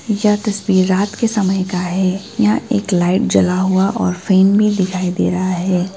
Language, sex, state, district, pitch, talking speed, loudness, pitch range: Hindi, female, West Bengal, Alipurduar, 190 Hz, 190 wpm, -16 LUFS, 180-205 Hz